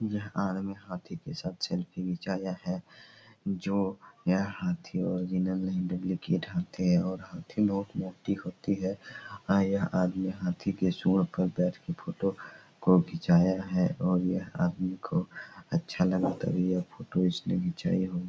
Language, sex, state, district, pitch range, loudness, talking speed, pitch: Hindi, male, Bihar, Araria, 90-105 Hz, -31 LUFS, 140 wpm, 95 Hz